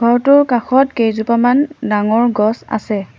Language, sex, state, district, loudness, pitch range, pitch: Assamese, female, Assam, Sonitpur, -14 LUFS, 215-255 Hz, 235 Hz